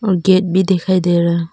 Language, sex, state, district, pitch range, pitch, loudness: Hindi, female, Arunachal Pradesh, Papum Pare, 175-190 Hz, 185 Hz, -14 LUFS